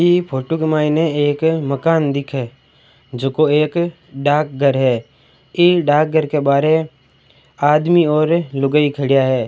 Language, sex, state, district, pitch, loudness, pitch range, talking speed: Marwari, male, Rajasthan, Churu, 145 Hz, -16 LUFS, 135-160 Hz, 140 wpm